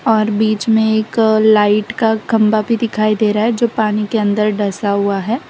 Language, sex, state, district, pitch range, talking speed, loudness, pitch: Hindi, female, Gujarat, Valsad, 210-225 Hz, 205 wpm, -15 LUFS, 215 Hz